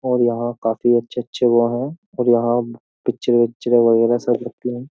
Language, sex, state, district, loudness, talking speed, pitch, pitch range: Hindi, male, Uttar Pradesh, Jyotiba Phule Nagar, -19 LUFS, 170 wpm, 120 Hz, 120-125 Hz